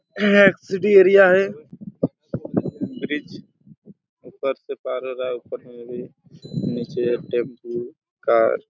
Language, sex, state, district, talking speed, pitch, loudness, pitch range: Hindi, male, Chhattisgarh, Raigarh, 130 wpm, 170 Hz, -20 LUFS, 120-200 Hz